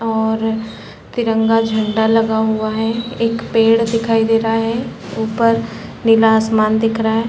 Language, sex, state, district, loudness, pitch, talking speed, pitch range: Hindi, female, Chhattisgarh, Balrampur, -16 LUFS, 225 Hz, 155 wpm, 220-225 Hz